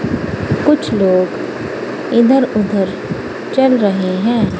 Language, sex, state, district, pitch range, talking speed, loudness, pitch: Hindi, female, Punjab, Kapurthala, 190-260 Hz, 90 wpm, -15 LUFS, 215 Hz